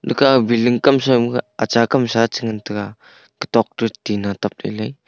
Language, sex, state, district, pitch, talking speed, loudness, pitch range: Wancho, male, Arunachal Pradesh, Longding, 115 Hz, 140 wpm, -18 LUFS, 105-125 Hz